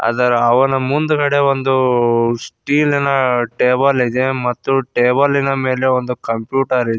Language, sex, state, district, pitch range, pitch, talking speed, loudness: Kannada, male, Karnataka, Koppal, 120-135 Hz, 130 Hz, 120 wpm, -15 LUFS